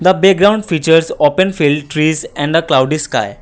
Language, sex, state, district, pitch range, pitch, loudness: English, male, Assam, Kamrup Metropolitan, 150-185 Hz, 160 Hz, -13 LUFS